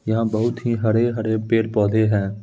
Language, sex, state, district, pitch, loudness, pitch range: Hindi, male, Bihar, Muzaffarpur, 110 Hz, -20 LUFS, 110-115 Hz